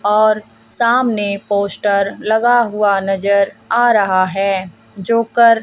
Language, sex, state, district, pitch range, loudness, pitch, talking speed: Hindi, female, Haryana, Jhajjar, 200-230 Hz, -15 LUFS, 205 Hz, 115 wpm